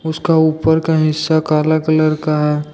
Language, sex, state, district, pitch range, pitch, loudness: Hindi, male, Jharkhand, Deoghar, 155-160 Hz, 155 Hz, -15 LUFS